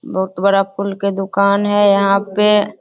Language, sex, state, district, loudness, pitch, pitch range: Hindi, female, Bihar, Begusarai, -15 LUFS, 200 Hz, 195-205 Hz